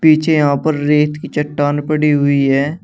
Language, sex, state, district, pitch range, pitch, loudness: Hindi, male, Uttar Pradesh, Shamli, 145-155 Hz, 150 Hz, -15 LUFS